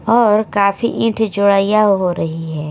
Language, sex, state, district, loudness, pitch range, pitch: Hindi, female, Punjab, Kapurthala, -15 LUFS, 180-220 Hz, 200 Hz